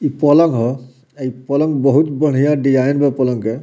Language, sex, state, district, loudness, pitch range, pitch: Bhojpuri, male, Bihar, Muzaffarpur, -15 LUFS, 130-150 Hz, 140 Hz